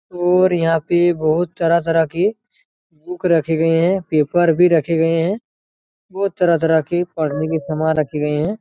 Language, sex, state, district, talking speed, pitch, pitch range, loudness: Hindi, male, Chhattisgarh, Raigarh, 165 wpm, 165 Hz, 160-180 Hz, -17 LUFS